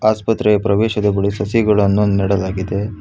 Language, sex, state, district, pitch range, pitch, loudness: Kannada, male, Karnataka, Bangalore, 100-105 Hz, 105 Hz, -16 LUFS